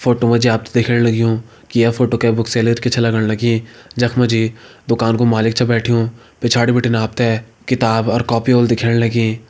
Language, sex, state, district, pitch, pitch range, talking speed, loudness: Hindi, male, Uttarakhand, Uttarkashi, 115 Hz, 115-120 Hz, 215 wpm, -16 LUFS